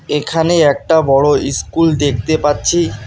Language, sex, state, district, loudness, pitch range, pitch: Bengali, male, West Bengal, Alipurduar, -13 LUFS, 135-160 Hz, 145 Hz